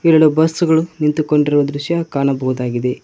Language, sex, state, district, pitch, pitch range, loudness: Kannada, male, Karnataka, Koppal, 150 Hz, 140-160 Hz, -16 LUFS